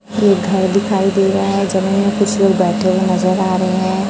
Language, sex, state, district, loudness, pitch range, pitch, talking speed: Hindi, female, Chhattisgarh, Raipur, -15 LUFS, 190-195 Hz, 195 Hz, 235 wpm